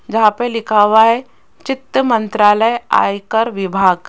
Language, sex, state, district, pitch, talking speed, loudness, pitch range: Hindi, female, Rajasthan, Jaipur, 225 Hz, 130 wpm, -14 LUFS, 205-240 Hz